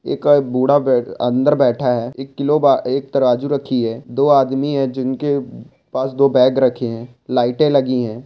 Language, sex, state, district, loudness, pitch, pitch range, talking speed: Hindi, male, Bihar, Bhagalpur, -17 LUFS, 130 Hz, 125-140 Hz, 175 wpm